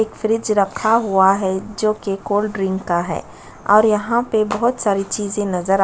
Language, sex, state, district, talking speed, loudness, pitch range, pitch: Hindi, female, Chhattisgarh, Sukma, 185 wpm, -18 LUFS, 195-215 Hz, 205 Hz